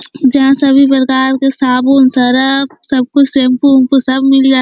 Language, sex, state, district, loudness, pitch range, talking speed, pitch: Hindi, female, Chhattisgarh, Korba, -10 LUFS, 260-275 Hz, 180 wpm, 270 Hz